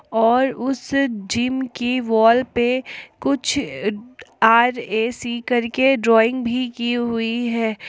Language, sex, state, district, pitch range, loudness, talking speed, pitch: Hindi, female, Jharkhand, Palamu, 230-255 Hz, -19 LUFS, 105 wpm, 240 Hz